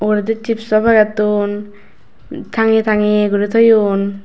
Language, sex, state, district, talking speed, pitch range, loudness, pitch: Chakma, female, Tripura, West Tripura, 100 wpm, 205-225 Hz, -14 LUFS, 210 Hz